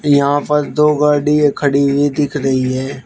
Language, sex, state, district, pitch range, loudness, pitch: Hindi, male, Uttar Pradesh, Shamli, 140-150 Hz, -14 LUFS, 145 Hz